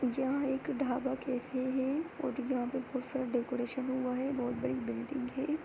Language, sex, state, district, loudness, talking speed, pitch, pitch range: Hindi, female, Bihar, Begusarai, -35 LUFS, 180 wpm, 260 Hz, 250-265 Hz